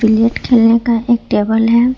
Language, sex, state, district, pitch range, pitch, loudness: Hindi, female, Jharkhand, Ranchi, 225-240 Hz, 230 Hz, -13 LUFS